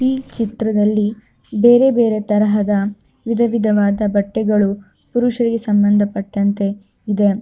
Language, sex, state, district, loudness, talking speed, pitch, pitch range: Kannada, female, Karnataka, Mysore, -16 LUFS, 90 wpm, 210 Hz, 205-230 Hz